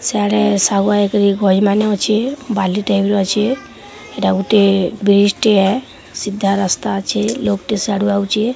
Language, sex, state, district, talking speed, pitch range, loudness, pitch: Odia, female, Odisha, Sambalpur, 155 wpm, 200-215 Hz, -15 LUFS, 205 Hz